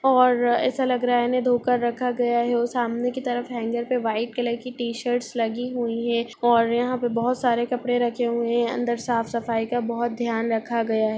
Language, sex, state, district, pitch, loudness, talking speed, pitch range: Hindi, female, Chhattisgarh, Sarguja, 240 Hz, -23 LUFS, 220 wpm, 235-245 Hz